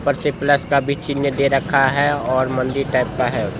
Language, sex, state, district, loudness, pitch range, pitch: Hindi, male, Bihar, Jamui, -18 LUFS, 130-145 Hz, 140 Hz